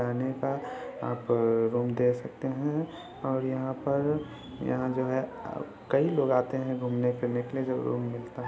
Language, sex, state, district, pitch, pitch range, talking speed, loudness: Hindi, male, Bihar, Samastipur, 130 Hz, 125-135 Hz, 190 wpm, -30 LUFS